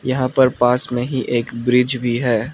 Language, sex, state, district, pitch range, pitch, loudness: Hindi, male, Arunachal Pradesh, Lower Dibang Valley, 120-130 Hz, 125 Hz, -18 LUFS